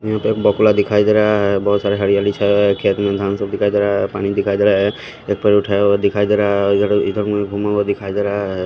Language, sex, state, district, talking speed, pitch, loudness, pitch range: Hindi, male, Haryana, Rohtak, 305 wpm, 100 Hz, -16 LUFS, 100-105 Hz